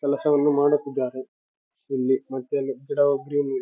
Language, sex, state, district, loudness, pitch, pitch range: Kannada, male, Karnataka, Raichur, -24 LUFS, 140 Hz, 135-145 Hz